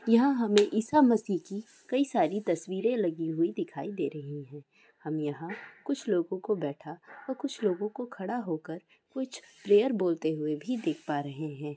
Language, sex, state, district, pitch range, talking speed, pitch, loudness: Hindi, female, West Bengal, Dakshin Dinajpur, 155-240 Hz, 140 wpm, 190 Hz, -30 LUFS